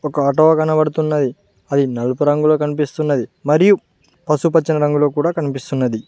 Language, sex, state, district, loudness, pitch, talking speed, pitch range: Telugu, male, Telangana, Mahabubabad, -16 LUFS, 150 Hz, 120 wpm, 140-155 Hz